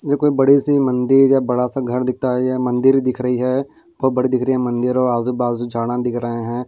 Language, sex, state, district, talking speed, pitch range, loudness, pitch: Hindi, male, Delhi, New Delhi, 250 wpm, 125-135 Hz, -17 LUFS, 125 Hz